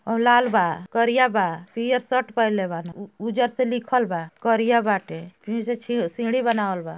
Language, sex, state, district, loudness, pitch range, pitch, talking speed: Bhojpuri, female, Uttar Pradesh, Ghazipur, -22 LUFS, 190-240 Hz, 230 Hz, 165 wpm